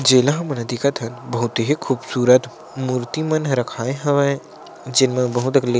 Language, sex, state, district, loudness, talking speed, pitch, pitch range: Chhattisgarhi, male, Chhattisgarh, Sarguja, -20 LUFS, 155 wpm, 130 Hz, 120-140 Hz